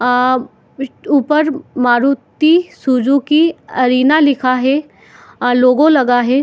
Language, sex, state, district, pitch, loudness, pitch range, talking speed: Hindi, female, Chhattisgarh, Bilaspur, 270 Hz, -13 LUFS, 255-300 Hz, 110 wpm